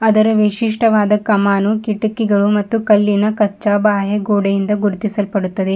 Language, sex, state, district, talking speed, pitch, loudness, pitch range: Kannada, female, Karnataka, Bidar, 105 wpm, 210 Hz, -15 LUFS, 205-215 Hz